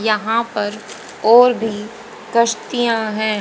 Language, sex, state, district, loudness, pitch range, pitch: Hindi, female, Haryana, Jhajjar, -17 LUFS, 215-235 Hz, 225 Hz